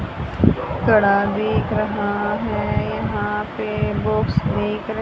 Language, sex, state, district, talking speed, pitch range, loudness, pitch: Hindi, male, Haryana, Rohtak, 105 wpm, 205-215 Hz, -20 LUFS, 210 Hz